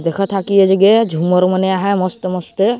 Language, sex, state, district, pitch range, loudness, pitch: Hindi, male, Chhattisgarh, Jashpur, 180-200 Hz, -14 LUFS, 190 Hz